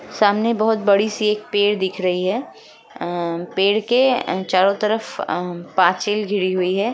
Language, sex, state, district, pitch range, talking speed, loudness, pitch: Hindi, female, Bihar, Gaya, 185-215 Hz, 175 wpm, -19 LUFS, 200 Hz